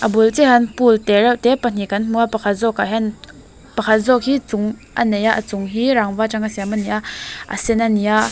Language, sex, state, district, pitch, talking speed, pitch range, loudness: Mizo, female, Mizoram, Aizawl, 220 Hz, 280 wpm, 215-235 Hz, -17 LUFS